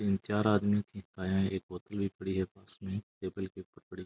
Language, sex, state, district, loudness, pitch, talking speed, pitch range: Rajasthani, male, Rajasthan, Churu, -34 LUFS, 95 Hz, 205 wpm, 95-100 Hz